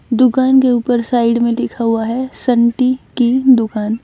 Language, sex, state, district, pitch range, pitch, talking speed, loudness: Hindi, female, Haryana, Jhajjar, 235-255 Hz, 245 Hz, 165 wpm, -14 LUFS